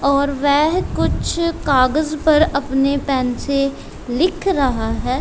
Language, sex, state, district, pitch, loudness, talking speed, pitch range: Hindi, female, Punjab, Kapurthala, 280 Hz, -18 LUFS, 125 wpm, 265-310 Hz